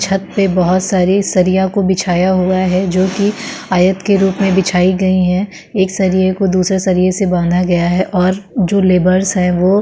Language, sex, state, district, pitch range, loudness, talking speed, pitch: Hindi, female, Uttarakhand, Tehri Garhwal, 185-195 Hz, -13 LUFS, 200 wpm, 185 Hz